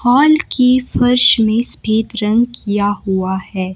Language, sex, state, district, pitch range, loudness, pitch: Hindi, female, Himachal Pradesh, Shimla, 205-245 Hz, -14 LUFS, 225 Hz